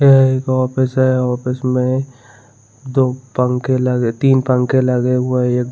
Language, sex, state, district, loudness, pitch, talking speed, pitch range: Hindi, male, Chhattisgarh, Bilaspur, -16 LUFS, 125 Hz, 145 wpm, 125-130 Hz